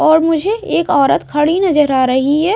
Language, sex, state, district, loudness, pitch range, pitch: Hindi, female, Maharashtra, Mumbai Suburban, -13 LUFS, 295-360 Hz, 315 Hz